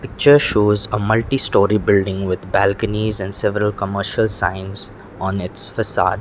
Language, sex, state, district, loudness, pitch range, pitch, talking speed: English, male, Sikkim, Gangtok, -18 LUFS, 95-110 Hz, 100 Hz, 135 wpm